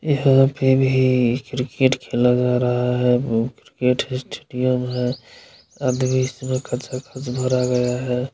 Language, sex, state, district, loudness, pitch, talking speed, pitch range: Maithili, male, Bihar, Supaul, -20 LUFS, 125 Hz, 85 wpm, 125-130 Hz